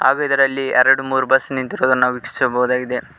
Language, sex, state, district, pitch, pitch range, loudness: Kannada, male, Karnataka, Koppal, 130 Hz, 125-135 Hz, -17 LUFS